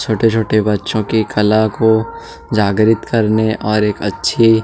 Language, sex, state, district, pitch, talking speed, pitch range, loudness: Hindi, male, Chhattisgarh, Jashpur, 110 Hz, 155 wpm, 105-115 Hz, -15 LUFS